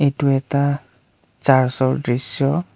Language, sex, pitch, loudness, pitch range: Assamese, male, 135 Hz, -19 LUFS, 125-140 Hz